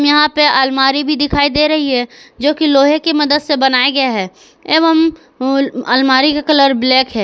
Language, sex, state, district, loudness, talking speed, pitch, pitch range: Hindi, female, Jharkhand, Garhwa, -12 LUFS, 190 wpm, 280 Hz, 260-300 Hz